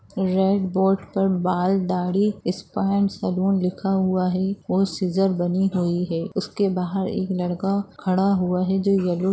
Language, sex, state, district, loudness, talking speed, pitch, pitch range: Hindi, female, Bihar, Jamui, -22 LUFS, 165 wpm, 190 Hz, 180-195 Hz